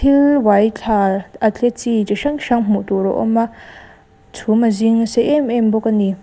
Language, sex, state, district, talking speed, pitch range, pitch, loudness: Mizo, female, Mizoram, Aizawl, 220 wpm, 210-240 Hz, 225 Hz, -16 LUFS